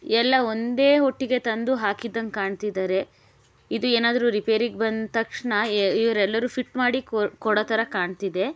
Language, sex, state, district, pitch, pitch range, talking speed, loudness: Kannada, female, Karnataka, Bellary, 225 Hz, 200-245 Hz, 140 wpm, -23 LUFS